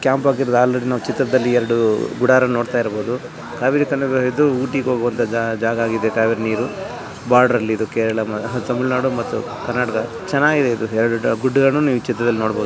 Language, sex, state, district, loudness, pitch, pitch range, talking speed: Kannada, male, Karnataka, Chamarajanagar, -18 LUFS, 125 Hz, 115-130 Hz, 100 wpm